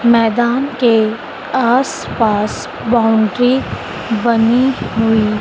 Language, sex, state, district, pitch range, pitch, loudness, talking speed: Hindi, female, Madhya Pradesh, Dhar, 220-245 Hz, 230 Hz, -15 LUFS, 80 wpm